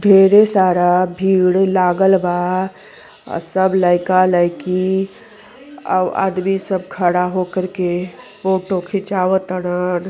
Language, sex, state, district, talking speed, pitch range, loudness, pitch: Bhojpuri, female, Uttar Pradesh, Gorakhpur, 100 wpm, 180-190 Hz, -16 LUFS, 185 Hz